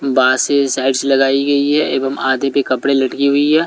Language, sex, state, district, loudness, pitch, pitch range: Hindi, male, Delhi, New Delhi, -15 LUFS, 135 Hz, 135-140 Hz